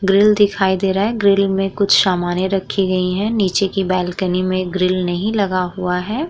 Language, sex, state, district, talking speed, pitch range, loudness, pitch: Hindi, female, Uttar Pradesh, Muzaffarnagar, 200 wpm, 185-200 Hz, -17 LUFS, 190 Hz